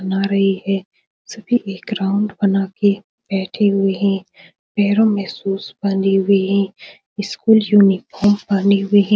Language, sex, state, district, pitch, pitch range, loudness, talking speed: Hindi, female, Bihar, Supaul, 200 Hz, 195-205 Hz, -17 LUFS, 145 wpm